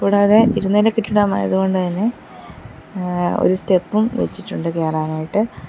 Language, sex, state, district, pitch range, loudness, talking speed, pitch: Malayalam, female, Kerala, Kollam, 180-215 Hz, -18 LUFS, 115 wpm, 200 Hz